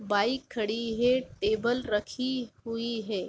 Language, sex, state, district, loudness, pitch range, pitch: Hindi, female, Uttar Pradesh, Jalaun, -30 LUFS, 210-245 Hz, 230 Hz